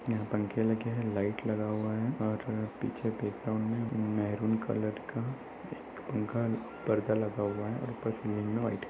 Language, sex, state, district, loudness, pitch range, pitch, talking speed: Hindi, male, Uttar Pradesh, Jyotiba Phule Nagar, -34 LUFS, 105-115 Hz, 110 Hz, 170 wpm